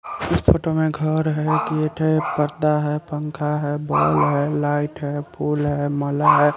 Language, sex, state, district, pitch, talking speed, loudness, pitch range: Hindi, male, Chandigarh, Chandigarh, 150 Hz, 175 wpm, -21 LUFS, 145-155 Hz